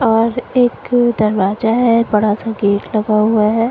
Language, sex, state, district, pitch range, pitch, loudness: Hindi, female, Punjab, Fazilka, 210-235 Hz, 225 Hz, -15 LUFS